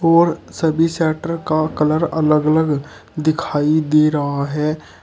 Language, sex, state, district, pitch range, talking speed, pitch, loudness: Hindi, male, Uttar Pradesh, Shamli, 150-160 Hz, 130 wpm, 155 Hz, -17 LUFS